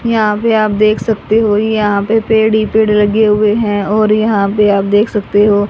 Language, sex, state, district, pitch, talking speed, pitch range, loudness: Hindi, female, Haryana, Charkhi Dadri, 215 Hz, 220 wpm, 205-220 Hz, -12 LUFS